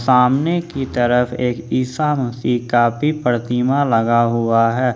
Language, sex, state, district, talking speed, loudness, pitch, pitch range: Hindi, male, Jharkhand, Ranchi, 145 wpm, -17 LUFS, 125 Hz, 120-135 Hz